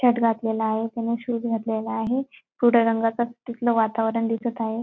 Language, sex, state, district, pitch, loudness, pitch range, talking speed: Marathi, female, Maharashtra, Dhule, 230 Hz, -24 LUFS, 225-235 Hz, 150 wpm